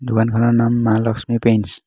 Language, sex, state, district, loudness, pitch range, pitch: Assamese, male, Assam, Hailakandi, -17 LUFS, 110-115 Hz, 115 Hz